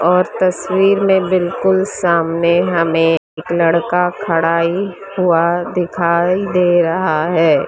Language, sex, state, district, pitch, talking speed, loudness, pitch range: Hindi, female, Maharashtra, Mumbai Suburban, 175 Hz, 115 wpm, -15 LUFS, 170-185 Hz